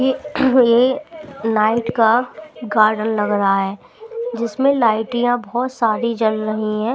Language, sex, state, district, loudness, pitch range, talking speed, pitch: Hindi, female, Bihar, Patna, -18 LUFS, 215-265 Hz, 130 wpm, 235 Hz